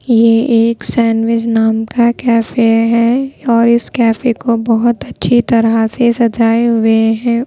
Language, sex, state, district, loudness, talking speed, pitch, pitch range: Hindi, female, Bihar, Patna, -12 LUFS, 145 wpm, 230 Hz, 225-235 Hz